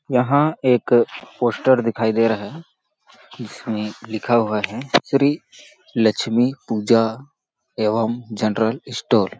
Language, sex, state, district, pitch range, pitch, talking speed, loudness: Hindi, male, Chhattisgarh, Sarguja, 110-135 Hz, 120 Hz, 110 wpm, -20 LUFS